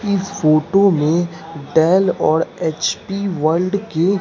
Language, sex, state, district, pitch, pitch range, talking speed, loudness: Hindi, male, Bihar, Katihar, 170 Hz, 160-195 Hz, 115 wpm, -17 LUFS